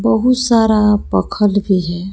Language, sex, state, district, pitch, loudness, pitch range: Hindi, female, Jharkhand, Palamu, 210 Hz, -14 LUFS, 190-225 Hz